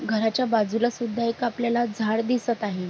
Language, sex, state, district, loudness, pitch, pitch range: Marathi, female, Maharashtra, Sindhudurg, -25 LUFS, 230 Hz, 220-240 Hz